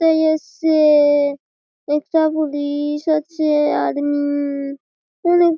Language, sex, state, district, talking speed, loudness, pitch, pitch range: Bengali, female, West Bengal, Malda, 85 wpm, -18 LUFS, 300 Hz, 290-315 Hz